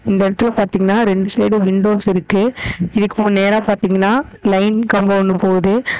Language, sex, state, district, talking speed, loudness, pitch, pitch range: Tamil, female, Tamil Nadu, Namakkal, 140 wpm, -15 LUFS, 200 Hz, 195-215 Hz